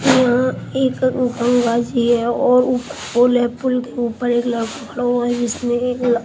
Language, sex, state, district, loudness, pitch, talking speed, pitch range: Hindi, female, Haryana, Rohtak, -18 LUFS, 245 Hz, 180 wpm, 240-250 Hz